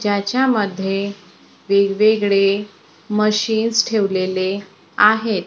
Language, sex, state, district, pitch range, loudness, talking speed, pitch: Marathi, female, Maharashtra, Gondia, 195-215 Hz, -17 LUFS, 55 wpm, 205 Hz